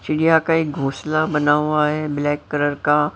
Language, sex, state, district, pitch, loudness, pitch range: Hindi, female, Maharashtra, Mumbai Suburban, 150 Hz, -19 LUFS, 145-155 Hz